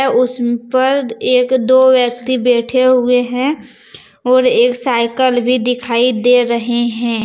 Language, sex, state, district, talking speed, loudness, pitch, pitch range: Hindi, female, Jharkhand, Deoghar, 130 wpm, -13 LUFS, 250 Hz, 240-255 Hz